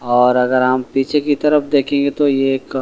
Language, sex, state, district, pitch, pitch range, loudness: Hindi, male, Delhi, New Delhi, 135 Hz, 130-145 Hz, -15 LUFS